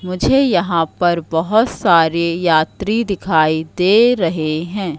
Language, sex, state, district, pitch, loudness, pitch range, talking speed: Hindi, female, Madhya Pradesh, Katni, 175 Hz, -15 LUFS, 160-200 Hz, 120 wpm